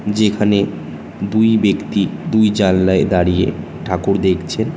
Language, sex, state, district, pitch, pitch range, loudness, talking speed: Bengali, male, West Bengal, North 24 Parganas, 95 Hz, 90-105 Hz, -16 LUFS, 100 wpm